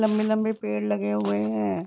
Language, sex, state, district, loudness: Hindi, female, Bihar, Begusarai, -25 LUFS